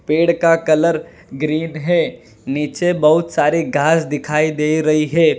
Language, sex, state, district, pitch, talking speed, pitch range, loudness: Hindi, male, Gujarat, Valsad, 155 Hz, 145 wpm, 150-165 Hz, -16 LUFS